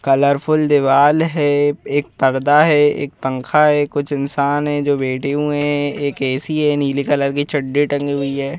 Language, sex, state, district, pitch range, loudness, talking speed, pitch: Hindi, male, Madhya Pradesh, Bhopal, 140-145 Hz, -16 LUFS, 180 wpm, 145 Hz